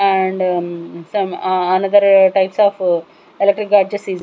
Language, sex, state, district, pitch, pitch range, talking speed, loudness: English, female, Punjab, Kapurthala, 190 Hz, 185-200 Hz, 140 wpm, -15 LUFS